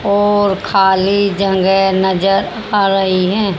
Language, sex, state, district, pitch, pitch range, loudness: Hindi, male, Haryana, Jhajjar, 195 Hz, 190-200 Hz, -13 LUFS